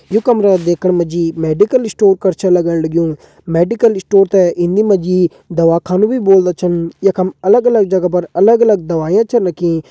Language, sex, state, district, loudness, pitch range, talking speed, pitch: Hindi, male, Uttarakhand, Uttarkashi, -13 LUFS, 170-205 Hz, 195 wpm, 185 Hz